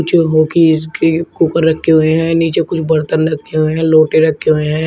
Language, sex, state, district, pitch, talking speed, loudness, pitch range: Hindi, male, Uttar Pradesh, Shamli, 160 Hz, 195 wpm, -13 LUFS, 155-165 Hz